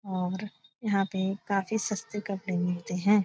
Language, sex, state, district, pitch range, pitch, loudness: Hindi, female, Bihar, Supaul, 190-210 Hz, 195 Hz, -30 LUFS